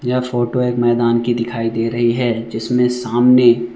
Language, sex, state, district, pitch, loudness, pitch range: Hindi, male, Arunachal Pradesh, Lower Dibang Valley, 120 Hz, -16 LUFS, 115-125 Hz